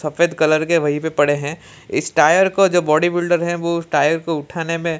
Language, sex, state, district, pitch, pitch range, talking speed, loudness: Hindi, male, Odisha, Malkangiri, 165 Hz, 155-170 Hz, 240 wpm, -17 LUFS